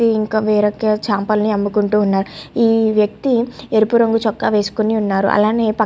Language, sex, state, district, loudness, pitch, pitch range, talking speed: Telugu, female, Andhra Pradesh, Guntur, -16 LUFS, 215 Hz, 210-220 Hz, 165 wpm